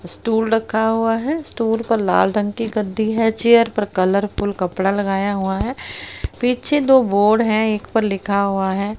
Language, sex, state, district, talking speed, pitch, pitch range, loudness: Hindi, female, Haryana, Rohtak, 180 wpm, 215 Hz, 200-225 Hz, -18 LUFS